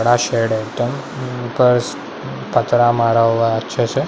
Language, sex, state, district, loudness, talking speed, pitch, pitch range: Hindi, male, Maharashtra, Mumbai Suburban, -17 LUFS, 175 wpm, 120 Hz, 115-125 Hz